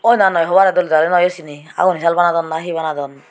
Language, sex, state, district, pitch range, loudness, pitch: Chakma, female, Tripura, Unakoti, 155-180 Hz, -15 LUFS, 170 Hz